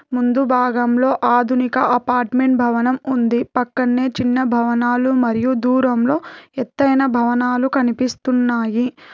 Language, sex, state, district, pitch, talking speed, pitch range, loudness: Telugu, female, Telangana, Hyderabad, 250 Hz, 90 wpm, 245-260 Hz, -17 LUFS